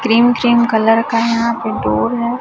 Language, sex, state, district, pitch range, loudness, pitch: Hindi, male, Chhattisgarh, Raipur, 225-235 Hz, -14 LUFS, 230 Hz